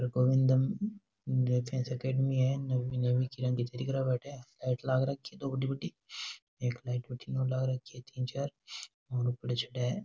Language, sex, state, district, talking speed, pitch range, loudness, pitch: Rajasthani, male, Rajasthan, Nagaur, 155 wpm, 125-135 Hz, -33 LUFS, 130 Hz